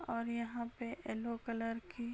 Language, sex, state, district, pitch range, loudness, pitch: Hindi, male, Uttar Pradesh, Gorakhpur, 230-235 Hz, -41 LUFS, 235 Hz